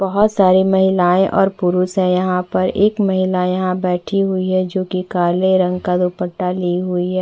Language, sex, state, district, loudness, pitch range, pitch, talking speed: Hindi, female, Chhattisgarh, Bastar, -16 LUFS, 180-190 Hz, 185 Hz, 190 wpm